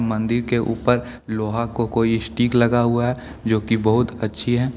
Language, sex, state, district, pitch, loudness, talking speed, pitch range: Hindi, male, Jharkhand, Deoghar, 115 Hz, -21 LUFS, 190 wpm, 110-120 Hz